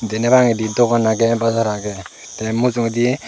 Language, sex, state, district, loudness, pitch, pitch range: Chakma, male, Tripura, Unakoti, -17 LUFS, 115 Hz, 110-120 Hz